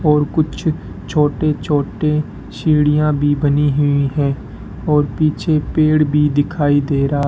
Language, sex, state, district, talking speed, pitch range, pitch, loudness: Hindi, male, Rajasthan, Bikaner, 130 wpm, 145-150 Hz, 150 Hz, -16 LUFS